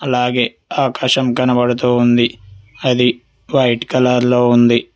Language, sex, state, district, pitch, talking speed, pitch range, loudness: Telugu, male, Telangana, Hyderabad, 125 Hz, 110 wpm, 120-125 Hz, -15 LUFS